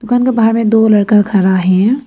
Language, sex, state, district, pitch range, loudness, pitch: Hindi, female, Arunachal Pradesh, Papum Pare, 200-235 Hz, -11 LUFS, 220 Hz